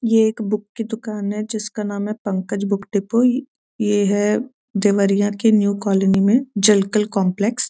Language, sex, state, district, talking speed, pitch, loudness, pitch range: Hindi, female, Uttar Pradesh, Deoria, 180 wpm, 210 Hz, -19 LUFS, 200-225 Hz